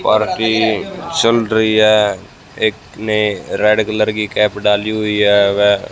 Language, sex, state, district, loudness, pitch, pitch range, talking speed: Hindi, male, Haryana, Rohtak, -14 LUFS, 105 Hz, 105-110 Hz, 140 wpm